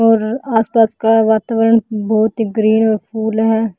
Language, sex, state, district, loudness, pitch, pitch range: Hindi, female, Bihar, Patna, -14 LUFS, 220 Hz, 220-225 Hz